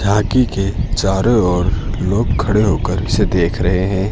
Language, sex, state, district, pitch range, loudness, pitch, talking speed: Hindi, male, Uttar Pradesh, Lucknow, 95-105 Hz, -16 LUFS, 100 Hz, 160 wpm